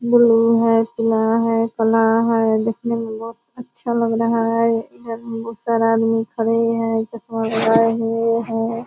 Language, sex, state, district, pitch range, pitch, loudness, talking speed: Hindi, female, Bihar, Purnia, 225-230 Hz, 230 Hz, -18 LUFS, 150 wpm